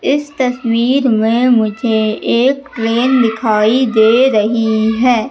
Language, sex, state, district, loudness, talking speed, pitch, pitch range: Hindi, female, Madhya Pradesh, Katni, -13 LUFS, 115 wpm, 235 Hz, 220-255 Hz